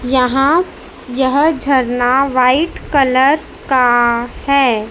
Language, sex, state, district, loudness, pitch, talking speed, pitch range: Hindi, female, Madhya Pradesh, Dhar, -13 LUFS, 260 Hz, 85 wpm, 250-280 Hz